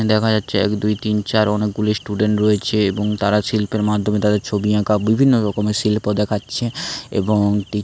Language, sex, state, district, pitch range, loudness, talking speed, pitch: Bengali, male, West Bengal, Paschim Medinipur, 105-110 Hz, -18 LUFS, 160 wpm, 105 Hz